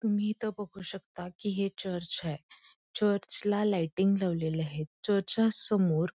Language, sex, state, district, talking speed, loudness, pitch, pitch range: Marathi, female, Karnataka, Belgaum, 145 wpm, -31 LUFS, 195 Hz, 170-205 Hz